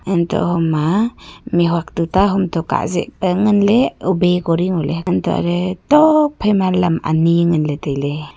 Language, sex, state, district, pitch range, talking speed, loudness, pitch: Wancho, female, Arunachal Pradesh, Longding, 165-195 Hz, 215 wpm, -16 LUFS, 180 Hz